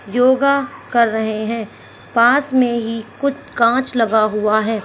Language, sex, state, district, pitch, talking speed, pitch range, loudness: Hindi, female, Rajasthan, Churu, 235 Hz, 150 wpm, 220-260 Hz, -17 LUFS